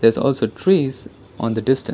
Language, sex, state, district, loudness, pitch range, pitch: English, female, Karnataka, Bangalore, -19 LUFS, 115-135 Hz, 130 Hz